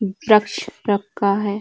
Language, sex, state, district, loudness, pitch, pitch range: Hindi, female, Uttar Pradesh, Varanasi, -19 LUFS, 205 Hz, 200-210 Hz